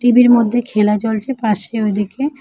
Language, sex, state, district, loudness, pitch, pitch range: Bengali, female, West Bengal, Cooch Behar, -15 LUFS, 225 Hz, 210-245 Hz